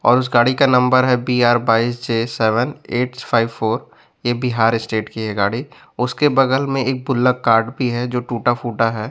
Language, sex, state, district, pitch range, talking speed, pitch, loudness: Hindi, male, Bihar, West Champaran, 115-125 Hz, 205 wpm, 120 Hz, -18 LUFS